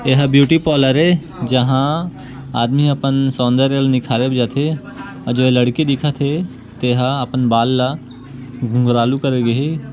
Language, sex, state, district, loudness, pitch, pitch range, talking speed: Chhattisgarhi, male, Chhattisgarh, Korba, -16 LUFS, 130 Hz, 125-140 Hz, 150 wpm